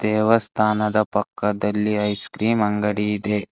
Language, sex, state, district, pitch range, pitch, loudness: Kannada, male, Karnataka, Bangalore, 105-110 Hz, 105 Hz, -21 LUFS